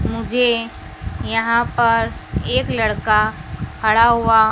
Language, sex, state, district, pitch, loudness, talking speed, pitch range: Hindi, female, Madhya Pradesh, Dhar, 225 Hz, -17 LUFS, 95 wpm, 215-235 Hz